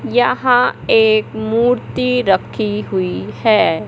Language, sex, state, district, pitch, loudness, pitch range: Hindi, male, Madhya Pradesh, Katni, 245 Hz, -15 LUFS, 215-250 Hz